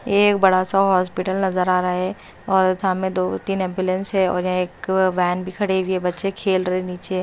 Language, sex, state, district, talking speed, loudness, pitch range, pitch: Hindi, female, Maharashtra, Mumbai Suburban, 230 wpm, -20 LUFS, 185-190 Hz, 185 Hz